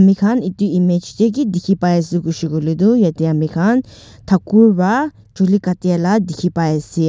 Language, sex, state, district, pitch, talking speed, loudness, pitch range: Nagamese, female, Nagaland, Dimapur, 185 Hz, 185 wpm, -16 LUFS, 170-205 Hz